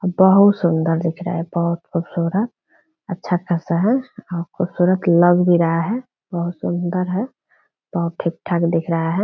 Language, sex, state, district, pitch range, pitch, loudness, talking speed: Hindi, female, Bihar, Purnia, 170-195 Hz, 175 Hz, -19 LUFS, 160 wpm